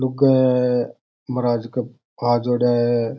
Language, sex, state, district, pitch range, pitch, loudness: Rajasthani, male, Rajasthan, Churu, 120-125 Hz, 120 Hz, -20 LUFS